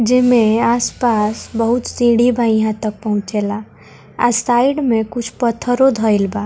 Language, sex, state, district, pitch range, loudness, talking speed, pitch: Bhojpuri, female, Bihar, Muzaffarpur, 215-240 Hz, -16 LUFS, 150 wpm, 230 Hz